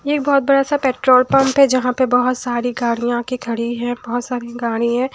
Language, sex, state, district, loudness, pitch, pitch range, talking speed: Hindi, female, Bihar, West Champaran, -17 LUFS, 250 Hz, 240-265 Hz, 235 wpm